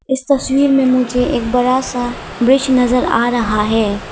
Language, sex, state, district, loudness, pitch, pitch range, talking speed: Hindi, female, Arunachal Pradesh, Lower Dibang Valley, -14 LUFS, 250 Hz, 235-265 Hz, 175 wpm